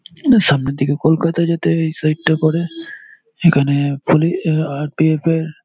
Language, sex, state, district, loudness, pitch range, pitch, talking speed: Bengali, male, West Bengal, Malda, -16 LUFS, 150-170 Hz, 160 Hz, 125 wpm